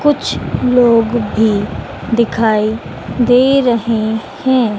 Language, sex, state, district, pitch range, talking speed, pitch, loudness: Hindi, female, Madhya Pradesh, Dhar, 220-250 Hz, 90 wpm, 230 Hz, -14 LUFS